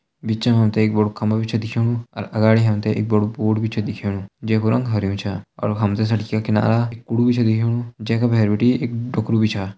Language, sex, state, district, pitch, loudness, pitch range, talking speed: Hindi, male, Uttarakhand, Tehri Garhwal, 110 Hz, -20 LUFS, 105-115 Hz, 265 wpm